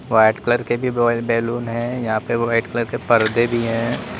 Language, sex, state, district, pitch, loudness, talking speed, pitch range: Hindi, male, Uttar Pradesh, Lalitpur, 115 Hz, -19 LUFS, 215 wpm, 115-120 Hz